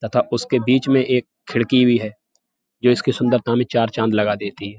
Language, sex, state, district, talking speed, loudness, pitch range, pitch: Hindi, male, Uttar Pradesh, Budaun, 215 wpm, -19 LUFS, 110-125 Hz, 120 Hz